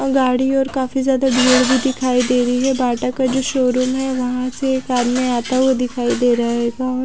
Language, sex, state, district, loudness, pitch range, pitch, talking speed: Hindi, female, Odisha, Nuapada, -17 LUFS, 250-265 Hz, 255 Hz, 220 wpm